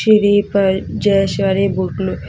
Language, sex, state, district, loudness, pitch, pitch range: Hindi, female, Uttar Pradesh, Shamli, -15 LUFS, 200 Hz, 195-205 Hz